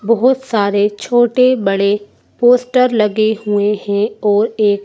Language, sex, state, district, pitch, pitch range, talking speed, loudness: Hindi, female, Madhya Pradesh, Bhopal, 215 Hz, 205-240 Hz, 125 wpm, -14 LUFS